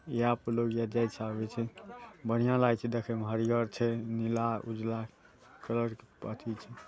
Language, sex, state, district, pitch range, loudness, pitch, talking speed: Maithili, male, Bihar, Saharsa, 115-120 Hz, -33 LUFS, 115 Hz, 140 wpm